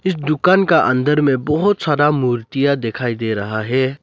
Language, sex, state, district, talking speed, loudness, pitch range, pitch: Hindi, male, Arunachal Pradesh, Lower Dibang Valley, 180 wpm, -17 LUFS, 125-155 Hz, 140 Hz